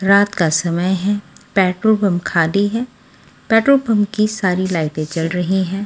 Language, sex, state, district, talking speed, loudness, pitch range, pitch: Hindi, female, Delhi, New Delhi, 165 wpm, -17 LUFS, 175-210 Hz, 190 Hz